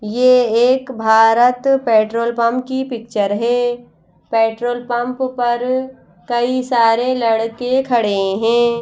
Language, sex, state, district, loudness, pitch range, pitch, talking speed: Hindi, female, Madhya Pradesh, Bhopal, -16 LUFS, 230-255 Hz, 240 Hz, 110 wpm